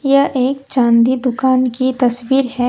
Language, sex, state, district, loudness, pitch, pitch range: Hindi, female, Jharkhand, Deoghar, -15 LUFS, 260 Hz, 245-265 Hz